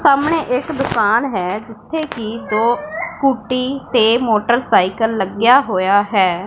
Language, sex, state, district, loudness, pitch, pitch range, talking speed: Punjabi, female, Punjab, Pathankot, -16 LUFS, 235 Hz, 215-275 Hz, 120 wpm